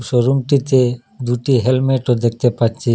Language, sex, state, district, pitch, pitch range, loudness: Bengali, male, Assam, Hailakandi, 125 Hz, 120-130 Hz, -16 LUFS